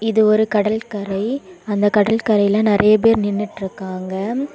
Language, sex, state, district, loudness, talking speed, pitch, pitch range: Tamil, female, Tamil Nadu, Kanyakumari, -18 LUFS, 120 wpm, 210 Hz, 200-220 Hz